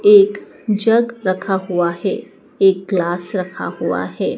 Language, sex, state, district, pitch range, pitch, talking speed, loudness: Hindi, female, Madhya Pradesh, Dhar, 180-225 Hz, 190 Hz, 135 wpm, -18 LUFS